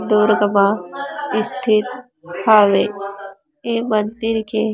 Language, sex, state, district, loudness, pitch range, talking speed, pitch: Chhattisgarhi, female, Chhattisgarh, Rajnandgaon, -17 LUFS, 200-230 Hz, 90 wpm, 215 Hz